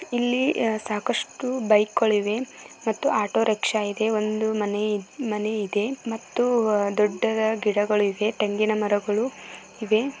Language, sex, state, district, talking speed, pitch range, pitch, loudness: Kannada, female, Karnataka, Belgaum, 105 wpm, 210-230 Hz, 215 Hz, -24 LUFS